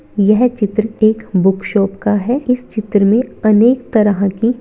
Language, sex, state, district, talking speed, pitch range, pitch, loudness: Hindi, female, Bihar, Darbhanga, 170 wpm, 200-235 Hz, 215 Hz, -14 LUFS